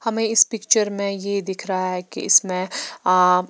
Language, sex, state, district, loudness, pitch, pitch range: Hindi, female, Himachal Pradesh, Shimla, -20 LUFS, 200 Hz, 185-225 Hz